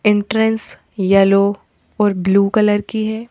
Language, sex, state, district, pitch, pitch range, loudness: Hindi, female, Madhya Pradesh, Bhopal, 205 Hz, 200-220 Hz, -16 LUFS